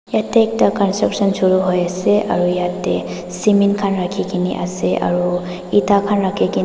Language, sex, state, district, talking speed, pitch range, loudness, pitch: Nagamese, female, Nagaland, Dimapur, 145 wpm, 180-200 Hz, -17 LUFS, 185 Hz